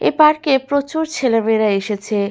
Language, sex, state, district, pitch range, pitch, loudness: Bengali, female, West Bengal, Malda, 210-300 Hz, 255 Hz, -17 LUFS